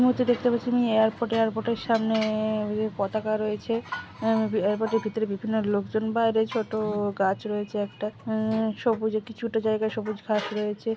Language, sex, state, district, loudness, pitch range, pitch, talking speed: Bengali, female, West Bengal, Malda, -26 LUFS, 215-225 Hz, 220 Hz, 170 wpm